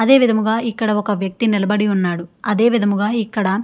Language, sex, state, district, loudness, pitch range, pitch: Telugu, female, Andhra Pradesh, Srikakulam, -17 LUFS, 200-225 Hz, 210 Hz